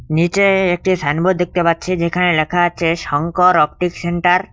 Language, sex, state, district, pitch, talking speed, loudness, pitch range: Bengali, male, West Bengal, Cooch Behar, 175 Hz, 160 wpm, -16 LUFS, 165-180 Hz